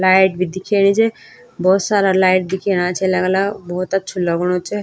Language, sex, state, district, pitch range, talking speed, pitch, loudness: Garhwali, female, Uttarakhand, Tehri Garhwal, 185-200 Hz, 175 wpm, 190 Hz, -17 LUFS